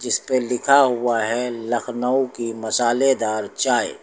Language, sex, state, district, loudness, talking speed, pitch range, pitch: Hindi, male, Uttar Pradesh, Lucknow, -20 LUFS, 120 wpm, 115-130 Hz, 120 Hz